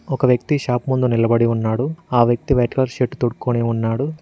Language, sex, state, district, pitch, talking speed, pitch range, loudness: Telugu, male, Telangana, Mahabubabad, 125 Hz, 185 wpm, 115-135 Hz, -19 LUFS